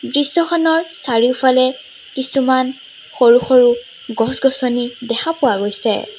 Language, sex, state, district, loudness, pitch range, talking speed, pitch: Assamese, female, Assam, Sonitpur, -15 LUFS, 240-275 Hz, 85 wpm, 260 Hz